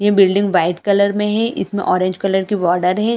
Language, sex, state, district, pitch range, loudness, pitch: Hindi, female, Chhattisgarh, Bilaspur, 185-205 Hz, -16 LUFS, 200 Hz